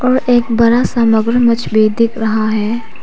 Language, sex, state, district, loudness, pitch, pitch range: Hindi, female, Arunachal Pradesh, Papum Pare, -13 LUFS, 230 Hz, 220-240 Hz